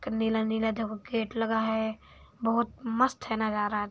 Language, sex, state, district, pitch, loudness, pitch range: Hindi, male, Uttar Pradesh, Hamirpur, 225 Hz, -29 LUFS, 220-225 Hz